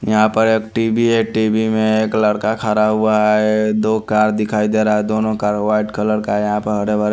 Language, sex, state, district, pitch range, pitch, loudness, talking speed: Hindi, male, Haryana, Charkhi Dadri, 105-110 Hz, 110 Hz, -16 LUFS, 235 wpm